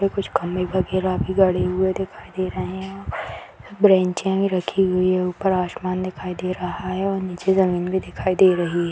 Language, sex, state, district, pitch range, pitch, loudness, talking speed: Hindi, female, Bihar, Madhepura, 180-190 Hz, 185 Hz, -21 LUFS, 190 wpm